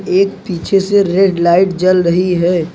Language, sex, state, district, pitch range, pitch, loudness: Hindi, male, Uttar Pradesh, Lucknow, 175-195 Hz, 185 Hz, -12 LUFS